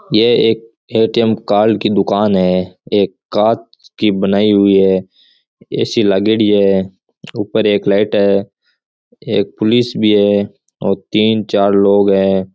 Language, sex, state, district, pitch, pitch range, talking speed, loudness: Rajasthani, male, Rajasthan, Churu, 100 Hz, 100-110 Hz, 140 wpm, -14 LUFS